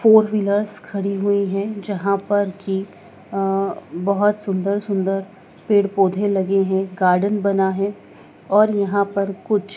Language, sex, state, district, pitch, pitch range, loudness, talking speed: Hindi, female, Madhya Pradesh, Dhar, 200 Hz, 195-205 Hz, -20 LUFS, 140 wpm